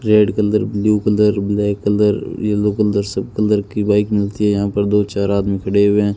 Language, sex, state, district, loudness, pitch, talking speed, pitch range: Hindi, male, Rajasthan, Bikaner, -17 LUFS, 105 Hz, 215 wpm, 100-105 Hz